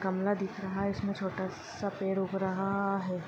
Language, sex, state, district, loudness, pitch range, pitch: Hindi, female, Uttar Pradesh, Jyotiba Phule Nagar, -33 LUFS, 190-200 Hz, 195 Hz